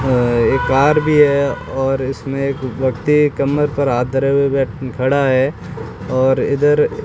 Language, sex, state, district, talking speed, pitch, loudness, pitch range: Hindi, male, Rajasthan, Bikaner, 170 wpm, 135 Hz, -16 LUFS, 130-140 Hz